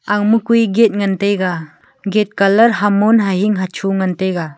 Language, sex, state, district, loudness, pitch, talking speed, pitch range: Wancho, female, Arunachal Pradesh, Longding, -14 LUFS, 200 Hz, 155 wpm, 190-220 Hz